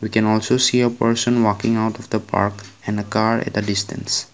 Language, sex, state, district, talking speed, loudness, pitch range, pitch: English, male, Assam, Kamrup Metropolitan, 235 wpm, -19 LUFS, 105-115 Hz, 110 Hz